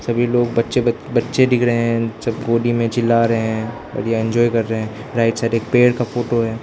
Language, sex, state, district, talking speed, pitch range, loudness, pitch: Hindi, male, Arunachal Pradesh, Lower Dibang Valley, 215 wpm, 115-120 Hz, -18 LUFS, 115 Hz